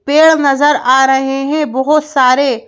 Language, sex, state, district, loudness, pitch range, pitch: Hindi, female, Madhya Pradesh, Bhopal, -11 LUFS, 265-300 Hz, 275 Hz